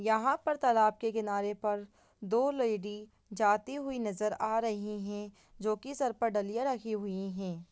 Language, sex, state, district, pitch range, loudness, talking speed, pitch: Hindi, female, Bihar, Lakhisarai, 205-235 Hz, -33 LUFS, 170 wpm, 215 Hz